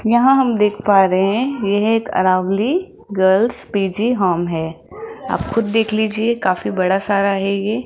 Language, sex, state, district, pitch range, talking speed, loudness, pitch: Hindi, female, Rajasthan, Jaipur, 190-230 Hz, 175 wpm, -17 LUFS, 205 Hz